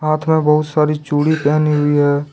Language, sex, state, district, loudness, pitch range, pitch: Hindi, male, Jharkhand, Deoghar, -15 LUFS, 145-155 Hz, 150 Hz